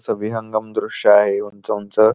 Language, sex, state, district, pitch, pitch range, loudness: Marathi, male, Maharashtra, Pune, 105 Hz, 105-110 Hz, -18 LUFS